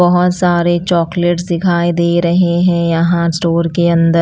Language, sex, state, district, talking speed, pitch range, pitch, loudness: Hindi, female, Punjab, Pathankot, 155 wpm, 170-175 Hz, 170 Hz, -13 LUFS